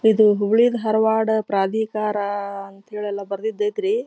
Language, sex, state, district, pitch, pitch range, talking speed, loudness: Kannada, female, Karnataka, Dharwad, 215 Hz, 200-220 Hz, 120 wpm, -21 LUFS